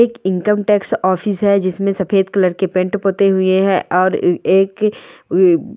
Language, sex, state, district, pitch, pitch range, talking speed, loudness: Hindi, male, Andhra Pradesh, Anantapur, 195 Hz, 185-205 Hz, 155 wpm, -15 LUFS